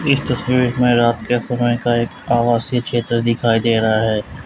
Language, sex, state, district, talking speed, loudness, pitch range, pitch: Hindi, male, Uttar Pradesh, Lalitpur, 190 wpm, -17 LUFS, 115-125 Hz, 120 Hz